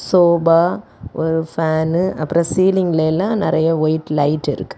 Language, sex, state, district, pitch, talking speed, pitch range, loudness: Tamil, female, Tamil Nadu, Kanyakumari, 160 Hz, 115 wpm, 155-175 Hz, -17 LUFS